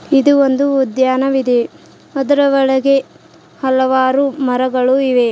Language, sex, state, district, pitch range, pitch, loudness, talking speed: Kannada, female, Karnataka, Bidar, 260-275 Hz, 265 Hz, -14 LUFS, 90 wpm